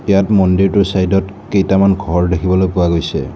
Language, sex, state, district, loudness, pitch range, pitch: Assamese, male, Assam, Kamrup Metropolitan, -14 LUFS, 90-100 Hz, 95 Hz